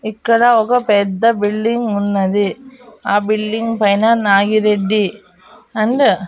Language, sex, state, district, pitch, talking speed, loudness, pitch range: Telugu, female, Andhra Pradesh, Annamaya, 215 Hz, 105 wpm, -15 LUFS, 205-230 Hz